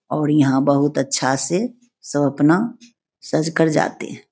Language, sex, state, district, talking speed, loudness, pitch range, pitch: Hindi, female, Bihar, Begusarai, 155 wpm, -19 LUFS, 145-185 Hz, 155 Hz